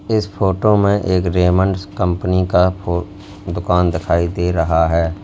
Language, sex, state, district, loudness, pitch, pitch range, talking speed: Hindi, male, Uttar Pradesh, Lalitpur, -17 LUFS, 90 Hz, 85-100 Hz, 135 wpm